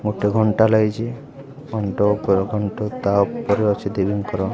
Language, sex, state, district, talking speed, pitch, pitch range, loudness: Odia, male, Odisha, Khordha, 160 wpm, 105 Hz, 100-110 Hz, -20 LUFS